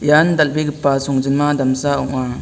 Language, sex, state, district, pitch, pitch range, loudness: Garo, male, Meghalaya, South Garo Hills, 140 Hz, 135-150 Hz, -17 LUFS